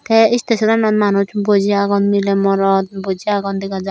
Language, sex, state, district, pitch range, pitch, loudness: Chakma, female, Tripura, Dhalai, 195-210 Hz, 200 Hz, -15 LUFS